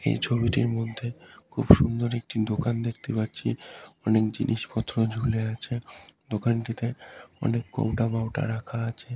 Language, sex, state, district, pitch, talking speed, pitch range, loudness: Bengali, male, West Bengal, Jalpaiguri, 115 Hz, 125 wpm, 115-120 Hz, -27 LUFS